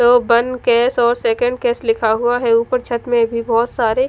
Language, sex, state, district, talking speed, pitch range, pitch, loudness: Hindi, female, Punjab, Fazilka, 220 wpm, 235-245 Hz, 240 Hz, -16 LUFS